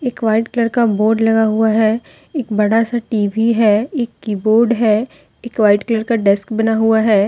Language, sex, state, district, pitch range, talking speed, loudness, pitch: Hindi, female, Jharkhand, Deoghar, 215-230 Hz, 200 wpm, -15 LUFS, 225 Hz